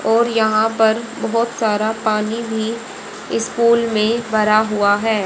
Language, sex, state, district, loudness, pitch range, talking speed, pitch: Hindi, female, Haryana, Charkhi Dadri, -17 LUFS, 215-230 Hz, 135 wpm, 220 Hz